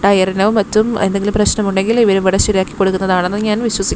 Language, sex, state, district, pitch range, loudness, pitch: Malayalam, female, Kerala, Thiruvananthapuram, 190-210 Hz, -14 LUFS, 200 Hz